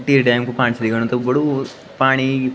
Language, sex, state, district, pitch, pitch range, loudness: Garhwali, male, Uttarakhand, Tehri Garhwal, 130 Hz, 120-135 Hz, -18 LUFS